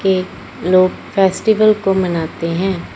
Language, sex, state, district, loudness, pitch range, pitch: Hindi, female, Punjab, Fazilka, -15 LUFS, 180-195 Hz, 190 Hz